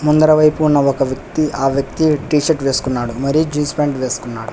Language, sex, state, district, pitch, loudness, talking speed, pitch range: Telugu, male, Telangana, Hyderabad, 145 Hz, -16 LUFS, 145 wpm, 135-155 Hz